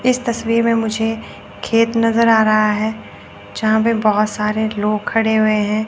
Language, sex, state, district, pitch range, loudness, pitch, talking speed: Hindi, female, Chandigarh, Chandigarh, 210-230 Hz, -16 LUFS, 220 Hz, 175 wpm